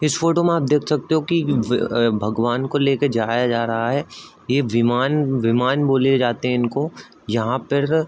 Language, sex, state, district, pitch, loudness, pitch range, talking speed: Hindi, male, Uttar Pradesh, Budaun, 130 Hz, -20 LUFS, 120-145 Hz, 185 wpm